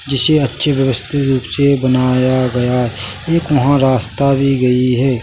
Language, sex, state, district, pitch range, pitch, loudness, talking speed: Hindi, male, Chhattisgarh, Bilaspur, 125-140 Hz, 130 Hz, -14 LUFS, 150 wpm